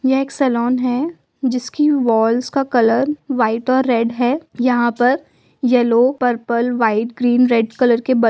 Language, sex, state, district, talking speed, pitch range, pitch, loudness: Hindi, female, Uttar Pradesh, Budaun, 165 wpm, 235-260 Hz, 245 Hz, -17 LUFS